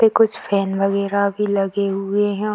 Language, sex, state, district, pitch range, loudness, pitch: Hindi, female, Uttar Pradesh, Gorakhpur, 195-205 Hz, -19 LUFS, 200 Hz